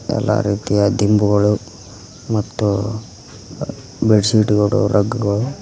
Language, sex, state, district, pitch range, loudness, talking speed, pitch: Kannada, male, Karnataka, Koppal, 100-110 Hz, -17 LUFS, 85 wpm, 105 Hz